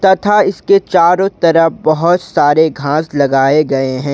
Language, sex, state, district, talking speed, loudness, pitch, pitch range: Hindi, male, Jharkhand, Ranchi, 145 wpm, -12 LUFS, 160 Hz, 140-185 Hz